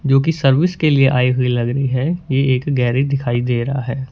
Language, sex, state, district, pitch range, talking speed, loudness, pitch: Hindi, male, Punjab, Fazilka, 125-140 Hz, 250 wpm, -17 LUFS, 135 Hz